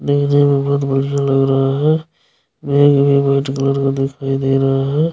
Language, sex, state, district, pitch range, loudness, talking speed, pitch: Maithili, male, Bihar, Supaul, 135-145 Hz, -15 LUFS, 175 wpm, 140 Hz